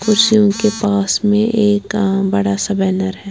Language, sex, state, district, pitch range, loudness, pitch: Hindi, female, Bihar, Patna, 195-215 Hz, -15 LUFS, 205 Hz